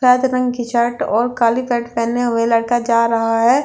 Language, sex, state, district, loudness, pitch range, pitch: Hindi, female, Delhi, New Delhi, -17 LUFS, 230-250 Hz, 235 Hz